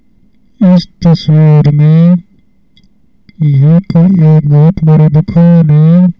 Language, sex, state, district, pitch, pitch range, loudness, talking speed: Hindi, male, Rajasthan, Bikaner, 170 Hz, 155-190 Hz, -7 LUFS, 95 wpm